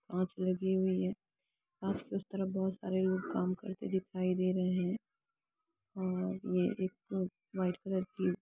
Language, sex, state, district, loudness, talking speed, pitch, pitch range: Hindi, female, Jharkhand, Jamtara, -36 LUFS, 220 wpm, 185 Hz, 185-195 Hz